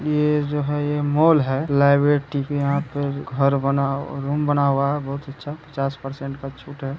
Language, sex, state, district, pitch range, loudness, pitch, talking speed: Hindi, male, Bihar, Jamui, 140-145 Hz, -21 LUFS, 140 Hz, 205 wpm